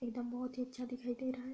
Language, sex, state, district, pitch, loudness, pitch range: Hindi, female, Uttar Pradesh, Gorakhpur, 250 Hz, -41 LUFS, 245-255 Hz